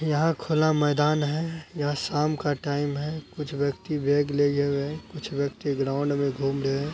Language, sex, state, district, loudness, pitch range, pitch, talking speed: Hindi, male, Bihar, Araria, -26 LUFS, 140-150 Hz, 145 Hz, 200 wpm